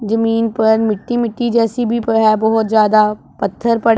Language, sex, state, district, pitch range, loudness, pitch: Hindi, female, Punjab, Pathankot, 220-230 Hz, -15 LUFS, 225 Hz